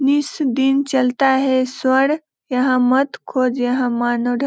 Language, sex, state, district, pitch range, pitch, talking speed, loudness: Hindi, female, Chhattisgarh, Balrampur, 255-275 Hz, 260 Hz, 135 wpm, -18 LUFS